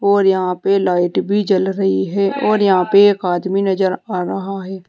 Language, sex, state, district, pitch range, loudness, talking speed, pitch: Hindi, female, Uttar Pradesh, Saharanpur, 185-200 Hz, -16 LUFS, 210 wpm, 190 Hz